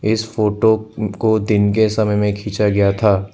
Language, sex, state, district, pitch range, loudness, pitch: Hindi, male, Assam, Sonitpur, 100-110 Hz, -17 LUFS, 105 Hz